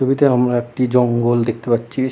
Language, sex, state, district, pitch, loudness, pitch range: Bengali, male, West Bengal, Kolkata, 125 Hz, -17 LUFS, 120-130 Hz